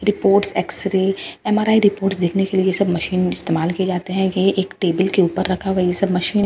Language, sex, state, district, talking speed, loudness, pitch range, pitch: Hindi, female, Bihar, Katihar, 215 wpm, -18 LUFS, 185-195 Hz, 190 Hz